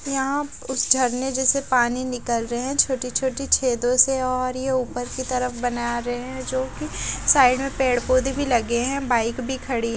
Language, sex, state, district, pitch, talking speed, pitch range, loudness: Hindi, female, Odisha, Khordha, 255 Hz, 190 wpm, 245-265 Hz, -22 LUFS